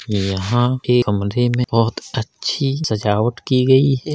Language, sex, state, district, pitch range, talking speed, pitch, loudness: Hindi, male, Uttar Pradesh, Jalaun, 110-130 Hz, 145 wpm, 120 Hz, -18 LUFS